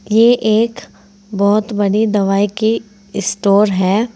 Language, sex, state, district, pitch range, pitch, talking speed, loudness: Hindi, female, Uttar Pradesh, Saharanpur, 200-220 Hz, 205 Hz, 115 wpm, -15 LUFS